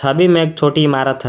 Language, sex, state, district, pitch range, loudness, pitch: Hindi, male, Jharkhand, Garhwa, 135-160 Hz, -14 LUFS, 150 Hz